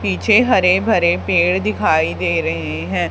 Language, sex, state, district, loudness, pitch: Hindi, female, Haryana, Charkhi Dadri, -16 LUFS, 175 Hz